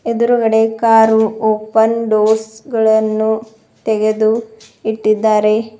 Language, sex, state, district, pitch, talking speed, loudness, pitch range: Kannada, female, Karnataka, Bidar, 220 Hz, 70 wpm, -14 LUFS, 220-225 Hz